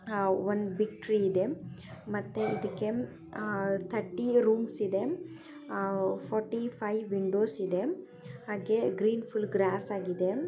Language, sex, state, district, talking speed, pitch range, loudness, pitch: Kannada, female, Karnataka, Chamarajanagar, 115 wpm, 195-220 Hz, -32 LUFS, 210 Hz